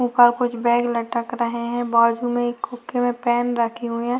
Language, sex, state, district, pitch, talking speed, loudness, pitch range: Hindi, female, Bihar, Vaishali, 240 Hz, 200 wpm, -21 LUFS, 235-245 Hz